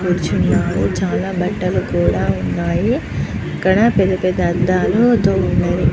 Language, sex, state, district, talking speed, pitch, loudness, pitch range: Telugu, female, Andhra Pradesh, Chittoor, 110 wpm, 190 Hz, -17 LUFS, 180-195 Hz